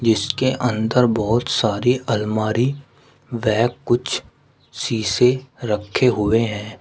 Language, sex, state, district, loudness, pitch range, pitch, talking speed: Hindi, male, Uttar Pradesh, Shamli, -20 LUFS, 110-125 Hz, 115 Hz, 95 wpm